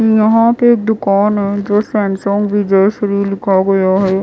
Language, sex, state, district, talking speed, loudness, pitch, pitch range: Hindi, female, Bihar, West Champaran, 140 wpm, -13 LUFS, 205 Hz, 195-215 Hz